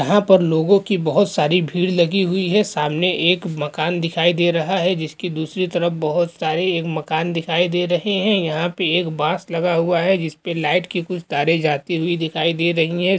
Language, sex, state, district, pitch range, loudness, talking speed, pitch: Bhojpuri, male, Bihar, Saran, 160-180 Hz, -19 LUFS, 220 wpm, 170 Hz